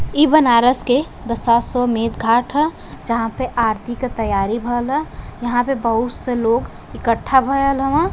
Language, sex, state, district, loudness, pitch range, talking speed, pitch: Bhojpuri, female, Uttar Pradesh, Varanasi, -18 LUFS, 230-270 Hz, 160 wpm, 245 Hz